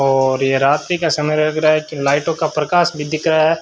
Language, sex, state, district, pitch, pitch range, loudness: Hindi, male, Rajasthan, Bikaner, 155 Hz, 140-160 Hz, -16 LUFS